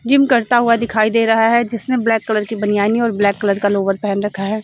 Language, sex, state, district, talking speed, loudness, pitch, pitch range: Hindi, female, Chandigarh, Chandigarh, 260 wpm, -16 LUFS, 220 Hz, 205-235 Hz